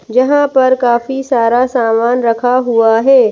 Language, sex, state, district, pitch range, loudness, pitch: Hindi, female, Madhya Pradesh, Bhopal, 230-260 Hz, -12 LUFS, 245 Hz